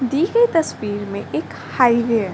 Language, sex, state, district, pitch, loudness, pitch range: Hindi, female, Uttar Pradesh, Ghazipur, 245 Hz, -19 LUFS, 210-320 Hz